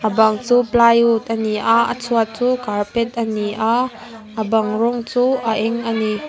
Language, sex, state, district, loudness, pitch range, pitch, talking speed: Mizo, female, Mizoram, Aizawl, -18 LUFS, 220-235 Hz, 230 Hz, 200 wpm